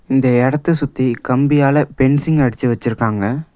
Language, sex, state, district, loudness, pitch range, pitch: Tamil, male, Tamil Nadu, Nilgiris, -16 LUFS, 125-145 Hz, 135 Hz